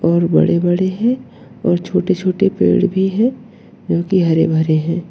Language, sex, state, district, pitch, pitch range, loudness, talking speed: Hindi, male, Uttarakhand, Uttarkashi, 185 Hz, 170-195 Hz, -16 LUFS, 175 wpm